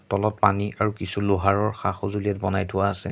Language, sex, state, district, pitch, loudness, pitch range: Assamese, male, Assam, Sonitpur, 100 Hz, -24 LUFS, 100-105 Hz